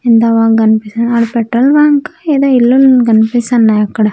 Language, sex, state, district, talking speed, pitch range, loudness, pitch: Telugu, female, Andhra Pradesh, Sri Satya Sai, 145 wpm, 225-265 Hz, -10 LUFS, 235 Hz